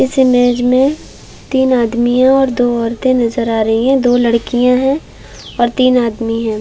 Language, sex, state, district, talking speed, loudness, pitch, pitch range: Hindi, female, Chhattisgarh, Balrampur, 180 wpm, -13 LUFS, 245 Hz, 235-260 Hz